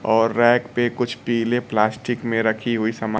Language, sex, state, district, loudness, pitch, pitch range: Hindi, male, Bihar, Kaimur, -21 LUFS, 115 Hz, 110-120 Hz